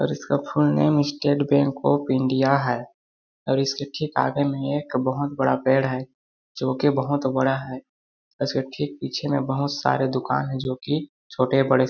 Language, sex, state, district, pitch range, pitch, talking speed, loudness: Hindi, male, Chhattisgarh, Balrampur, 130-140 Hz, 135 Hz, 185 wpm, -23 LUFS